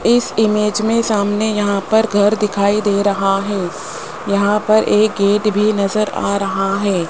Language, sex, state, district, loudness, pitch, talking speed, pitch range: Hindi, male, Rajasthan, Jaipur, -16 LUFS, 205 Hz, 170 wpm, 200-215 Hz